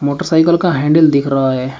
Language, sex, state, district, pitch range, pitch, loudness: Hindi, male, Uttar Pradesh, Shamli, 135-160 Hz, 145 Hz, -13 LUFS